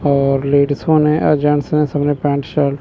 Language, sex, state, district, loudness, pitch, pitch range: Hindi, male, Chandigarh, Chandigarh, -15 LUFS, 145 Hz, 140-150 Hz